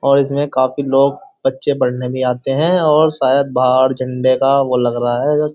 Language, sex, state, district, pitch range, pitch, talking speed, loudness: Hindi, male, Uttar Pradesh, Jyotiba Phule Nagar, 130-140 Hz, 135 Hz, 195 wpm, -15 LUFS